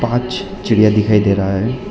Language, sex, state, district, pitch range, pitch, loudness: Hindi, male, Arunachal Pradesh, Lower Dibang Valley, 100-120 Hz, 105 Hz, -15 LUFS